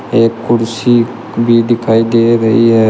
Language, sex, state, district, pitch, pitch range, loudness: Hindi, male, Uttar Pradesh, Shamli, 115 Hz, 115-120 Hz, -11 LUFS